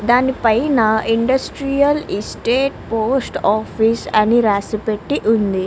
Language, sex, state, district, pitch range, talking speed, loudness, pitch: Telugu, female, Andhra Pradesh, Krishna, 215-265 Hz, 105 wpm, -17 LUFS, 225 Hz